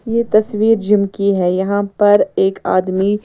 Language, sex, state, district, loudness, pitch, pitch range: Hindi, female, Maharashtra, Mumbai Suburban, -15 LUFS, 205 Hz, 195-210 Hz